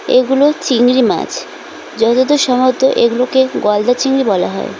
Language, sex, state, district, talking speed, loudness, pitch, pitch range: Bengali, female, West Bengal, Cooch Behar, 125 wpm, -13 LUFS, 255 Hz, 245-265 Hz